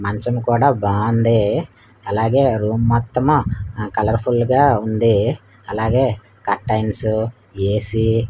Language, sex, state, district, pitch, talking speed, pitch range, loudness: Telugu, male, Andhra Pradesh, Manyam, 110 Hz, 110 wpm, 105-120 Hz, -18 LUFS